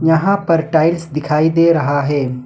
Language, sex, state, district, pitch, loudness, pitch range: Hindi, male, Jharkhand, Ranchi, 160 Hz, -15 LUFS, 150-165 Hz